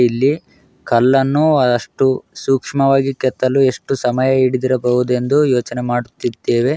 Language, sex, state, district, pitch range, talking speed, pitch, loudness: Kannada, male, Karnataka, Raichur, 125-135 Hz, 90 wpm, 130 Hz, -16 LUFS